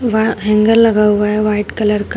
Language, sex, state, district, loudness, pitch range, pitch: Hindi, female, Uttar Pradesh, Shamli, -13 LUFS, 210-220 Hz, 210 Hz